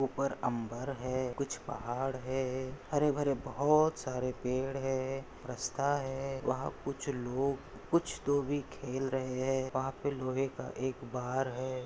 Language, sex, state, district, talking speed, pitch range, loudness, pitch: Hindi, male, Maharashtra, Pune, 140 wpm, 130-140 Hz, -35 LUFS, 135 Hz